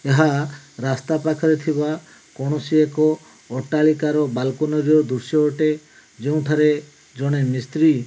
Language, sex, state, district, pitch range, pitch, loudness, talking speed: Odia, male, Odisha, Malkangiri, 140-155 Hz, 150 Hz, -20 LUFS, 120 wpm